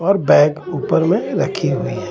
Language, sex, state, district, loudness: Hindi, male, Jharkhand, Ranchi, -16 LUFS